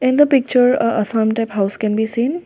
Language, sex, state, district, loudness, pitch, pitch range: English, female, Assam, Kamrup Metropolitan, -16 LUFS, 230 Hz, 220-255 Hz